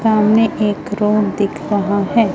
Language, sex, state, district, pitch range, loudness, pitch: Hindi, female, Chhattisgarh, Raipur, 205-220 Hz, -16 LUFS, 210 Hz